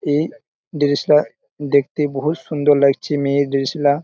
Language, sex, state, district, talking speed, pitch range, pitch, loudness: Bengali, male, West Bengal, Jalpaiguri, 135 wpm, 140-150 Hz, 145 Hz, -18 LUFS